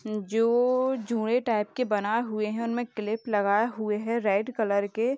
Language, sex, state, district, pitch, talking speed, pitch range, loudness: Hindi, female, Uttar Pradesh, Jalaun, 220 Hz, 175 wpm, 210-240 Hz, -27 LUFS